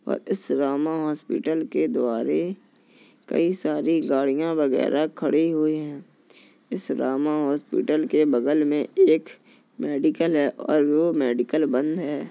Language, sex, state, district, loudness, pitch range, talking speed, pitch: Hindi, male, Uttar Pradesh, Jalaun, -23 LUFS, 145-160 Hz, 130 wpm, 150 Hz